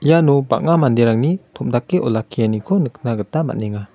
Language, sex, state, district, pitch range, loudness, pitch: Garo, male, Meghalaya, West Garo Hills, 110-160 Hz, -17 LUFS, 120 Hz